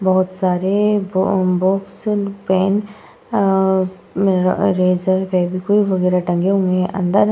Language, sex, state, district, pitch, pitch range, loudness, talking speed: Hindi, female, Uttar Pradesh, Muzaffarnagar, 190 Hz, 185-195 Hz, -17 LUFS, 105 wpm